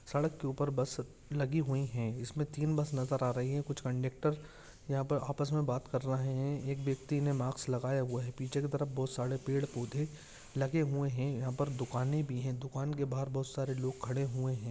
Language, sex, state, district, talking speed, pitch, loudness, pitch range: Hindi, male, Andhra Pradesh, Visakhapatnam, 225 wpm, 135 Hz, -36 LUFS, 130-145 Hz